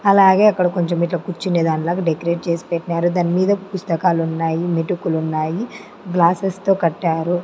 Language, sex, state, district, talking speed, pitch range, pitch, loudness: Telugu, female, Andhra Pradesh, Sri Satya Sai, 135 wpm, 165-185 Hz, 175 Hz, -18 LUFS